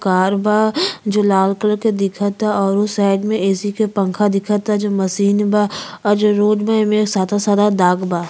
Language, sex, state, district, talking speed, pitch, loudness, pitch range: Bhojpuri, female, Uttar Pradesh, Ghazipur, 190 wpm, 205 Hz, -16 LUFS, 195-210 Hz